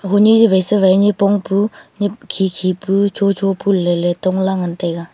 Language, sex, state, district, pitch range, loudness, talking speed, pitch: Wancho, female, Arunachal Pradesh, Longding, 185-205 Hz, -15 LUFS, 185 wpm, 195 Hz